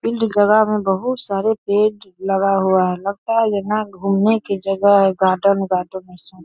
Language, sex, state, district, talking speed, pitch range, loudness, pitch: Hindi, female, Bihar, Saharsa, 175 wpm, 190-215 Hz, -17 LUFS, 200 Hz